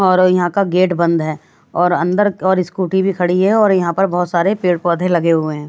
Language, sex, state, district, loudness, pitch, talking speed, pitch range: Hindi, female, Odisha, Nuapada, -15 LUFS, 180 Hz, 245 wpm, 170-190 Hz